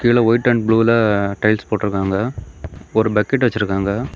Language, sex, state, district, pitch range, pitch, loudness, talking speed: Tamil, male, Tamil Nadu, Kanyakumari, 100-115 Hz, 110 Hz, -17 LUFS, 130 wpm